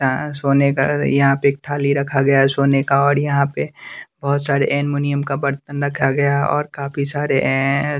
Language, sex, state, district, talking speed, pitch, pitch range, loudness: Hindi, male, Bihar, West Champaran, 200 wpm, 140 Hz, 140-145 Hz, -18 LUFS